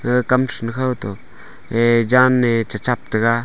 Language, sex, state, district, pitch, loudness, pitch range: Wancho, male, Arunachal Pradesh, Longding, 120 Hz, -18 LUFS, 115-125 Hz